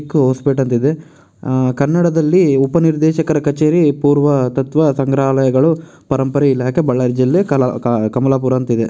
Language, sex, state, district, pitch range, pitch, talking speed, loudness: Kannada, male, Karnataka, Bellary, 130-155 Hz, 140 Hz, 120 wpm, -14 LUFS